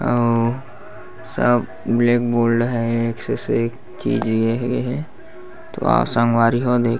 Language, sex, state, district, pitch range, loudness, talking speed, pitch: Chhattisgarhi, male, Chhattisgarh, Bastar, 115-125 Hz, -19 LUFS, 145 wpm, 120 Hz